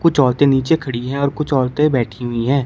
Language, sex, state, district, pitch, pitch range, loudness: Hindi, male, Uttar Pradesh, Shamli, 135 Hz, 125-145 Hz, -17 LUFS